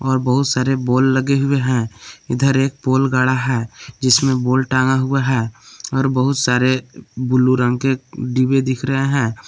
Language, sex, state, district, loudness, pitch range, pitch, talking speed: Hindi, male, Jharkhand, Palamu, -17 LUFS, 125-135 Hz, 130 Hz, 170 wpm